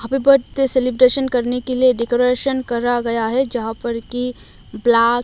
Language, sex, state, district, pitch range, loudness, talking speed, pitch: Hindi, female, Odisha, Malkangiri, 235-255 Hz, -17 LUFS, 160 wpm, 245 Hz